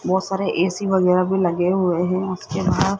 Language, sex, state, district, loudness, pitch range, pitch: Hindi, male, Rajasthan, Jaipur, -20 LUFS, 180-190 Hz, 185 Hz